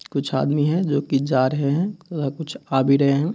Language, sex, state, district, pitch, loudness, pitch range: Hindi, male, Bihar, Kishanganj, 145 Hz, -21 LUFS, 135-160 Hz